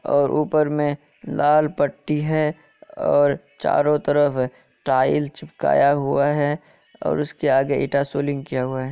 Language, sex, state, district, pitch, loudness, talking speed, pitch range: Hindi, male, Bihar, Kishanganj, 145 Hz, -21 LUFS, 140 wpm, 140-150 Hz